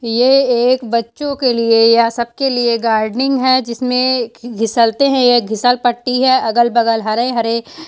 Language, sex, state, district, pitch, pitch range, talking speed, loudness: Hindi, female, Uttarakhand, Uttarkashi, 240 Hz, 230-255 Hz, 165 wpm, -14 LUFS